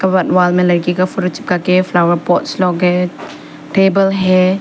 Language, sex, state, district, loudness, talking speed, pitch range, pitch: Hindi, female, Arunachal Pradesh, Papum Pare, -14 LUFS, 180 wpm, 180-190 Hz, 180 Hz